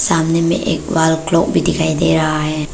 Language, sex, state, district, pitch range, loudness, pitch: Hindi, female, Arunachal Pradesh, Papum Pare, 160-165 Hz, -15 LUFS, 160 Hz